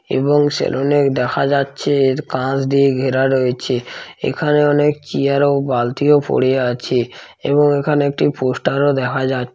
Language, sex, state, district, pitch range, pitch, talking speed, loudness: Bengali, male, West Bengal, Paschim Medinipur, 130-145 Hz, 140 Hz, 155 wpm, -16 LUFS